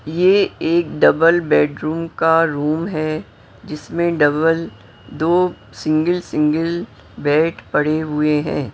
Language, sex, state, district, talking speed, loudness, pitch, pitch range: Hindi, female, Maharashtra, Mumbai Suburban, 110 wpm, -18 LUFS, 155 Hz, 150-170 Hz